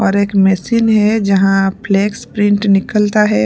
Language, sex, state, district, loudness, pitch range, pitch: Hindi, female, Punjab, Pathankot, -13 LUFS, 195-210 Hz, 200 Hz